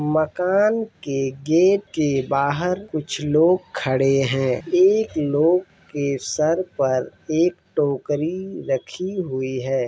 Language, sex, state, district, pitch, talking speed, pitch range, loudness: Hindi, male, Uttar Pradesh, Jalaun, 155 Hz, 115 wpm, 135-180 Hz, -21 LUFS